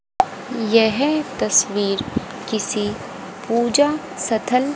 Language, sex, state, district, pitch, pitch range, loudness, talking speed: Hindi, female, Haryana, Rohtak, 230 Hz, 205-265 Hz, -20 LUFS, 75 wpm